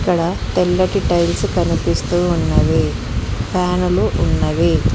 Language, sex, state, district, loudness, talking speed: Telugu, female, Telangana, Mahabubabad, -17 LUFS, 95 wpm